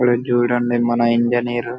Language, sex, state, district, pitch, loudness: Telugu, male, Andhra Pradesh, Anantapur, 120 Hz, -18 LUFS